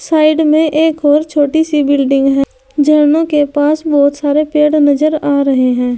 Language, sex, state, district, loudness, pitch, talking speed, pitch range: Hindi, female, Uttar Pradesh, Saharanpur, -12 LUFS, 295 Hz, 180 wpm, 285-310 Hz